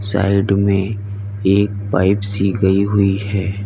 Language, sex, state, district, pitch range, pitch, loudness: Hindi, male, Uttar Pradesh, Lalitpur, 95-100 Hz, 100 Hz, -17 LUFS